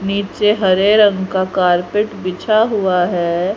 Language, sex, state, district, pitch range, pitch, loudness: Hindi, female, Haryana, Rohtak, 185-210 Hz, 195 Hz, -15 LUFS